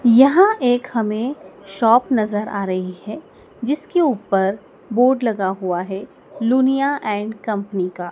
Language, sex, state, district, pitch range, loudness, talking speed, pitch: Hindi, female, Madhya Pradesh, Dhar, 195-255 Hz, -19 LUFS, 135 wpm, 220 Hz